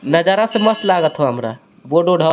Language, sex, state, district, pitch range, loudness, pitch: Hindi, male, Jharkhand, Garhwa, 145-195 Hz, -16 LUFS, 165 Hz